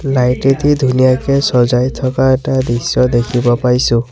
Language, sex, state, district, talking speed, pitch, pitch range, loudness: Assamese, male, Assam, Sonitpur, 130 wpm, 130 Hz, 125-135 Hz, -13 LUFS